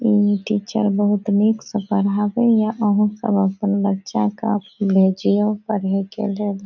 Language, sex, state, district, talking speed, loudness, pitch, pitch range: Maithili, female, Bihar, Saharsa, 155 wpm, -19 LUFS, 205 Hz, 200-215 Hz